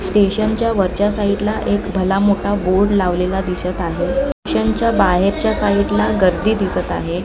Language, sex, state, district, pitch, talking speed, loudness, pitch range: Marathi, female, Maharashtra, Mumbai Suburban, 200 Hz, 130 wpm, -17 LUFS, 185-210 Hz